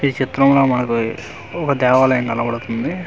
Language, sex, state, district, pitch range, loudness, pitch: Telugu, male, Andhra Pradesh, Manyam, 115-135 Hz, -17 LUFS, 130 Hz